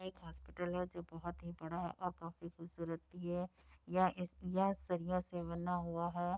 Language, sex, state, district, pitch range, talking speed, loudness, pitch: Hindi, female, Uttar Pradesh, Budaun, 170-180 Hz, 170 wpm, -42 LUFS, 175 Hz